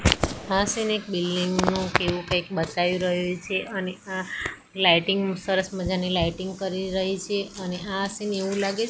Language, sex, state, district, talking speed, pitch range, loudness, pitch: Gujarati, female, Gujarat, Gandhinagar, 170 wpm, 180-195 Hz, -25 LUFS, 190 Hz